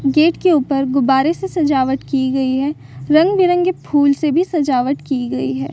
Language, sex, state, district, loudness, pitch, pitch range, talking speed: Hindi, female, Bihar, Saran, -16 LUFS, 285 Hz, 265-320 Hz, 190 wpm